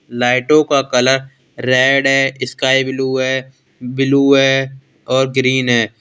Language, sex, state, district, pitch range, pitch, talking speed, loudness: Hindi, male, Uttar Pradesh, Lalitpur, 130-135 Hz, 130 Hz, 130 wpm, -14 LUFS